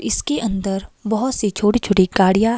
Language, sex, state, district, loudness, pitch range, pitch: Hindi, female, Himachal Pradesh, Shimla, -19 LUFS, 195-235 Hz, 210 Hz